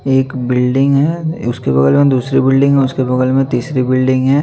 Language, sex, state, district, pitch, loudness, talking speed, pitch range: Hindi, male, Chandigarh, Chandigarh, 130 Hz, -13 LUFS, 205 wpm, 125-135 Hz